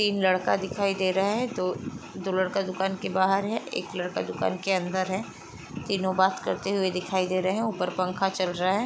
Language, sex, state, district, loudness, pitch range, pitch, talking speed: Hindi, female, Uttar Pradesh, Jalaun, -27 LUFS, 185-195 Hz, 190 Hz, 215 wpm